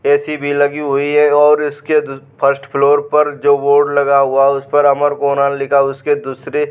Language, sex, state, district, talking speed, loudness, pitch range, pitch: Hindi, male, Bihar, Vaishali, 205 wpm, -14 LUFS, 140-145 Hz, 145 Hz